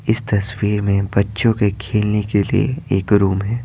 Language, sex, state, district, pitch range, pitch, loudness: Hindi, male, Bihar, Patna, 100-110 Hz, 105 Hz, -18 LUFS